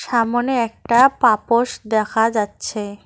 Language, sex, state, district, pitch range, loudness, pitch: Bengali, female, West Bengal, Cooch Behar, 215-240 Hz, -18 LUFS, 230 Hz